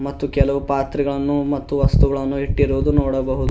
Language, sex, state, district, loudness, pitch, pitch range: Kannada, male, Karnataka, Bidar, -19 LUFS, 140 Hz, 135-140 Hz